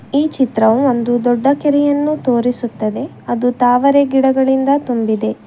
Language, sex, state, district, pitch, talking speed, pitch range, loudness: Kannada, female, Karnataka, Bangalore, 260 Hz, 110 wpm, 240-280 Hz, -15 LUFS